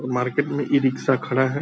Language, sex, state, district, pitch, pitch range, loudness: Hindi, male, Bihar, Purnia, 135 Hz, 130-145 Hz, -22 LUFS